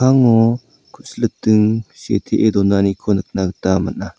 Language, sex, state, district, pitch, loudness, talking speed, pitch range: Garo, male, Meghalaya, South Garo Hills, 105 Hz, -16 LUFS, 85 wpm, 95-115 Hz